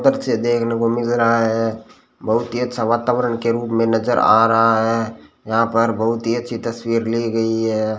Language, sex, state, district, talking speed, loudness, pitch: Hindi, male, Rajasthan, Bikaner, 195 wpm, -18 LUFS, 115 Hz